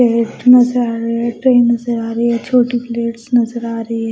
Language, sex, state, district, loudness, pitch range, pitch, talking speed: Hindi, female, Odisha, Malkangiri, -15 LUFS, 230-245 Hz, 235 Hz, 230 wpm